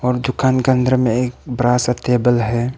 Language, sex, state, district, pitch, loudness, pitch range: Hindi, male, Arunachal Pradesh, Papum Pare, 125 Hz, -17 LUFS, 120-130 Hz